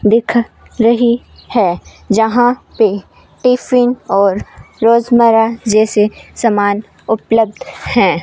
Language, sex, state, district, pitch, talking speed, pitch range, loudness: Hindi, female, Rajasthan, Bikaner, 225 Hz, 85 wpm, 215-240 Hz, -13 LUFS